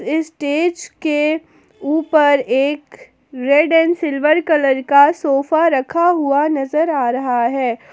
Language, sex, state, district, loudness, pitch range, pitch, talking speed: Hindi, female, Jharkhand, Palamu, -16 LUFS, 270-320 Hz, 295 Hz, 120 wpm